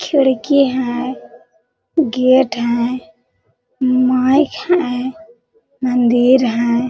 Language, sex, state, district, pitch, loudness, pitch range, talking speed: Hindi, female, Jharkhand, Sahebganj, 255 Hz, -15 LUFS, 240-265 Hz, 70 wpm